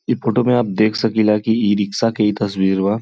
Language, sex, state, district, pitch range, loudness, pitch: Bhojpuri, male, Uttar Pradesh, Gorakhpur, 105-115 Hz, -17 LUFS, 110 Hz